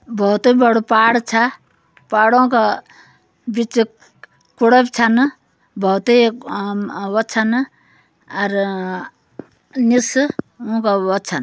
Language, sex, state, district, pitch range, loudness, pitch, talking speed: Garhwali, female, Uttarakhand, Uttarkashi, 205-245 Hz, -16 LUFS, 230 Hz, 115 wpm